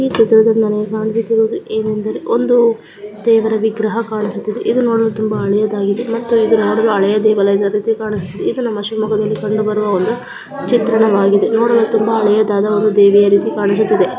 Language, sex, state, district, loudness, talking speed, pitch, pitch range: Kannada, female, Karnataka, Shimoga, -14 LUFS, 130 wpm, 215 Hz, 210-225 Hz